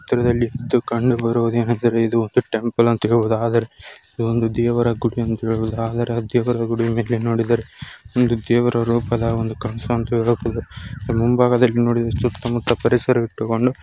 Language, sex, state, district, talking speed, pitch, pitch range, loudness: Kannada, male, Karnataka, Mysore, 120 wpm, 115 Hz, 115-120 Hz, -19 LUFS